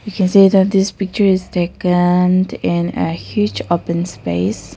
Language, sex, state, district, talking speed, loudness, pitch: English, female, Nagaland, Kohima, 165 wpm, -16 LUFS, 180 Hz